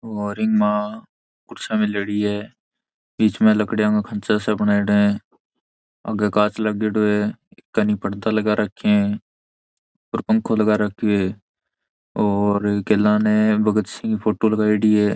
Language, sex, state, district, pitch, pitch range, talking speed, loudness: Marwari, male, Rajasthan, Churu, 105 Hz, 105-110 Hz, 135 wpm, -20 LUFS